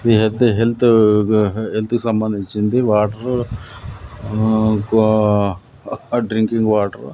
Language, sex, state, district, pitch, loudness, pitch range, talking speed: Telugu, male, Andhra Pradesh, Sri Satya Sai, 110 Hz, -16 LUFS, 105-115 Hz, 100 wpm